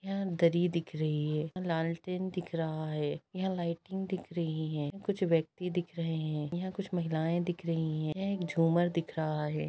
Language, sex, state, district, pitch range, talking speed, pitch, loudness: Hindi, female, Bihar, Gaya, 155-180 Hz, 190 wpm, 170 Hz, -33 LUFS